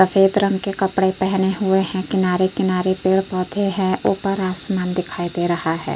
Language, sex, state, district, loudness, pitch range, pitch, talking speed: Hindi, female, Uttar Pradesh, Jyotiba Phule Nagar, -19 LUFS, 185-195 Hz, 190 Hz, 170 wpm